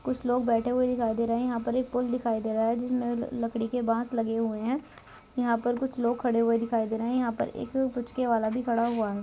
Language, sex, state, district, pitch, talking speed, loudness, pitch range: Hindi, female, Rajasthan, Nagaur, 235 Hz, 275 wpm, -28 LUFS, 230-250 Hz